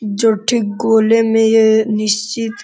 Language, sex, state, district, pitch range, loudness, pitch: Hindi, male, Uttar Pradesh, Gorakhpur, 215-225 Hz, -14 LUFS, 225 Hz